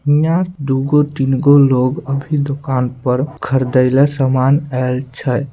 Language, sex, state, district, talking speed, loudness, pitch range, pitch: Maithili, male, Bihar, Samastipur, 150 wpm, -15 LUFS, 130-145 Hz, 135 Hz